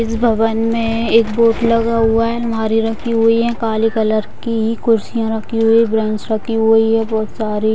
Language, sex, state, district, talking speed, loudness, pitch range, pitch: Hindi, female, Bihar, Vaishali, 195 wpm, -15 LUFS, 220-230 Hz, 225 Hz